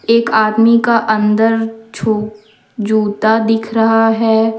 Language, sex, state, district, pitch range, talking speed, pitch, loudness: Hindi, female, Jharkhand, Deoghar, 215-225 Hz, 105 wpm, 225 Hz, -13 LUFS